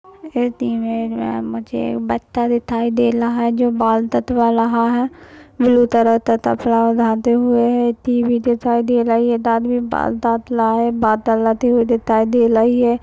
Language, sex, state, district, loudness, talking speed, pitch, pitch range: Hindi, male, Maharashtra, Nagpur, -17 LUFS, 120 wpm, 235 Hz, 230-240 Hz